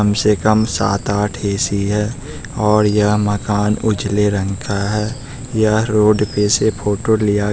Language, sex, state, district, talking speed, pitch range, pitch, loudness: Hindi, male, Bihar, West Champaran, 160 wpm, 105-110 Hz, 105 Hz, -16 LUFS